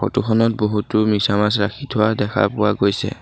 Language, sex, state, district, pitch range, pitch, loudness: Assamese, male, Assam, Sonitpur, 100-110 Hz, 105 Hz, -18 LUFS